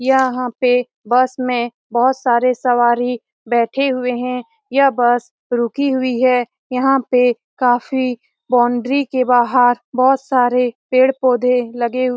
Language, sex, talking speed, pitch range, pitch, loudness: Hindi, female, 135 wpm, 245-260 Hz, 250 Hz, -16 LUFS